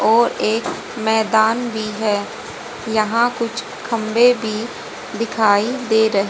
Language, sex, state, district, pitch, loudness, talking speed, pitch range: Hindi, female, Haryana, Rohtak, 220 Hz, -18 LUFS, 115 wpm, 215-235 Hz